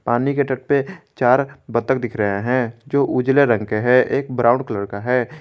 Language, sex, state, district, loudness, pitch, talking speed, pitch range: Hindi, male, Jharkhand, Garhwa, -19 LUFS, 125 Hz, 210 wpm, 120-140 Hz